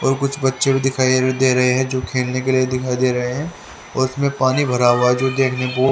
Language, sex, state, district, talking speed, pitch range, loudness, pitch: Hindi, male, Haryana, Rohtak, 255 wpm, 125-135 Hz, -18 LUFS, 130 Hz